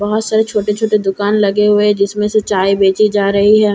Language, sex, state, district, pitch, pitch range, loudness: Hindi, female, Bihar, Katihar, 210 Hz, 200-215 Hz, -13 LUFS